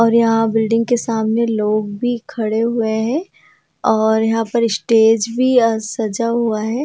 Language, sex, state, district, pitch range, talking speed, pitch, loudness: Hindi, female, Uttar Pradesh, Varanasi, 220-235 Hz, 165 wpm, 225 Hz, -17 LUFS